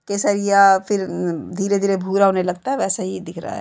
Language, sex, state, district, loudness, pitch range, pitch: Hindi, female, Uttar Pradesh, Jalaun, -19 LUFS, 185-200 Hz, 195 Hz